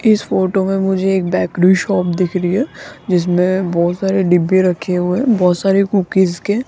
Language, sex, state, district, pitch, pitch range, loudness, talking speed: Hindi, female, Rajasthan, Jaipur, 185 Hz, 180-195 Hz, -15 LUFS, 190 wpm